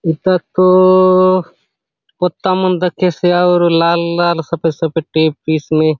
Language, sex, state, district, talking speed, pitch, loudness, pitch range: Halbi, male, Chhattisgarh, Bastar, 160 wpm, 175 Hz, -13 LUFS, 165-185 Hz